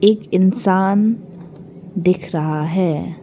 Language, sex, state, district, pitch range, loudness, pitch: Hindi, female, Arunachal Pradesh, Lower Dibang Valley, 175-195 Hz, -17 LUFS, 185 Hz